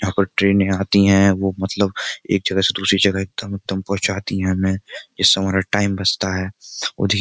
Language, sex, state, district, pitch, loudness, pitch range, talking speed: Hindi, male, Uttar Pradesh, Jyotiba Phule Nagar, 95 Hz, -18 LUFS, 95-100 Hz, 200 wpm